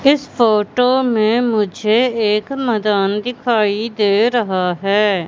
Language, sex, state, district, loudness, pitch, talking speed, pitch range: Hindi, female, Madhya Pradesh, Katni, -16 LUFS, 220 Hz, 115 wpm, 205-245 Hz